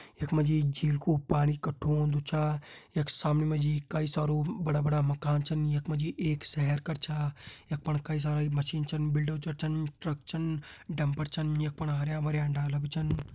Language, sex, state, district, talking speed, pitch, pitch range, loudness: Hindi, male, Uttarakhand, Uttarkashi, 205 wpm, 150 Hz, 145-155 Hz, -31 LUFS